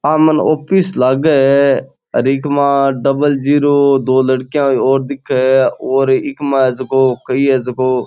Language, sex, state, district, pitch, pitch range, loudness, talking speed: Rajasthani, male, Rajasthan, Churu, 135 Hz, 130-145 Hz, -13 LUFS, 170 wpm